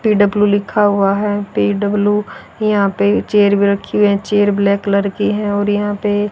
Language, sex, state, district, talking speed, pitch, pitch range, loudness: Hindi, female, Haryana, Rohtak, 190 wpm, 205 Hz, 200-210 Hz, -15 LUFS